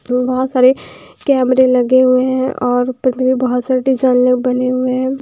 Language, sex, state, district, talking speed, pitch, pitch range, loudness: Hindi, female, Bihar, Patna, 170 wpm, 255 Hz, 250-260 Hz, -14 LUFS